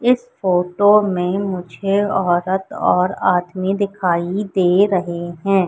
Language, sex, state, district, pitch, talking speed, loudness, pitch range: Hindi, female, Madhya Pradesh, Katni, 190 Hz, 115 wpm, -18 LUFS, 180-200 Hz